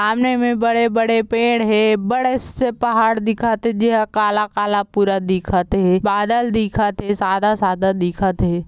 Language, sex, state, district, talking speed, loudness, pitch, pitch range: Chhattisgarhi, female, Chhattisgarh, Balrampur, 165 wpm, -17 LUFS, 215 Hz, 200-230 Hz